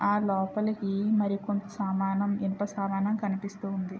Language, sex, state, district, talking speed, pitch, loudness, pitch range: Telugu, female, Andhra Pradesh, Chittoor, 135 wpm, 200 Hz, -29 LUFS, 195-205 Hz